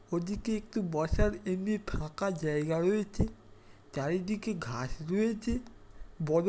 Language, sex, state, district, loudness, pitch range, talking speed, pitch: Bengali, male, West Bengal, Dakshin Dinajpur, -33 LUFS, 125-205 Hz, 130 wpm, 165 Hz